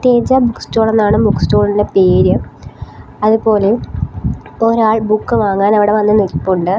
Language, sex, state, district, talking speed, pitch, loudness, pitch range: Malayalam, female, Kerala, Kollam, 125 wpm, 215 Hz, -13 LUFS, 205-225 Hz